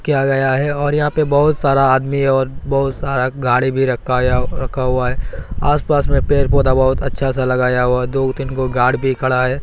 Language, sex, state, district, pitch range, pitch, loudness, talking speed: Hindi, male, Bihar, Katihar, 130-140 Hz, 135 Hz, -16 LUFS, 205 wpm